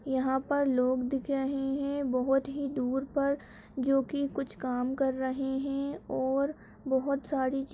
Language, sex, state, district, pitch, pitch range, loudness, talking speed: Kumaoni, female, Uttarakhand, Uttarkashi, 270 Hz, 260-280 Hz, -31 LUFS, 165 wpm